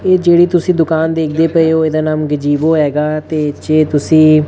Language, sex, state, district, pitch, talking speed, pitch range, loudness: Punjabi, male, Punjab, Fazilka, 155 Hz, 185 wpm, 150-165 Hz, -12 LUFS